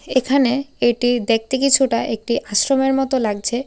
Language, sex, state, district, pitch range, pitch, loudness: Bengali, female, Tripura, West Tripura, 230-270 Hz, 255 Hz, -18 LUFS